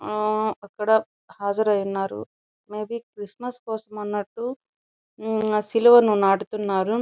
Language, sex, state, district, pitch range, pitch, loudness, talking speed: Telugu, female, Andhra Pradesh, Chittoor, 205-225 Hz, 215 Hz, -23 LUFS, 75 wpm